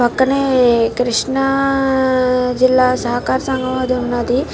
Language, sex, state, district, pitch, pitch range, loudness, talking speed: Telugu, female, Andhra Pradesh, Krishna, 255 Hz, 245-265 Hz, -15 LUFS, 95 wpm